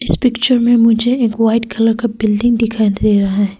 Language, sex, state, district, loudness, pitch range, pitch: Hindi, female, Arunachal Pradesh, Papum Pare, -14 LUFS, 215-235 Hz, 225 Hz